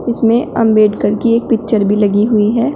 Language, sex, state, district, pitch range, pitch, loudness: Hindi, female, Uttar Pradesh, Shamli, 210-235 Hz, 225 Hz, -13 LUFS